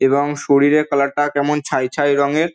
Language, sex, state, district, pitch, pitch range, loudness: Bengali, male, West Bengal, Dakshin Dinajpur, 145 Hz, 140-150 Hz, -17 LUFS